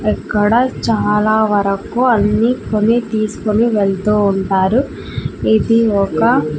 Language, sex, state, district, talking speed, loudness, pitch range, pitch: Telugu, female, Andhra Pradesh, Sri Satya Sai, 90 wpm, -15 LUFS, 195-230 Hz, 210 Hz